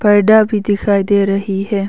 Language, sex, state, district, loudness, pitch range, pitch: Hindi, female, Arunachal Pradesh, Longding, -13 LUFS, 200-210 Hz, 205 Hz